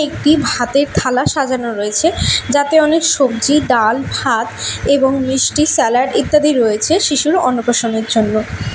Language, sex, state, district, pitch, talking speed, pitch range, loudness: Bengali, female, West Bengal, Alipurduar, 275 Hz, 125 wpm, 235-300 Hz, -14 LUFS